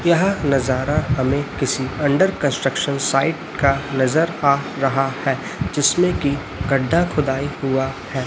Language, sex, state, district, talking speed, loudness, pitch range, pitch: Hindi, male, Chhattisgarh, Raipur, 130 wpm, -19 LUFS, 135-150 Hz, 140 Hz